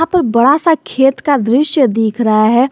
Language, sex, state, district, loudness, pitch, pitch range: Hindi, male, Jharkhand, Garhwa, -12 LUFS, 270 Hz, 230-300 Hz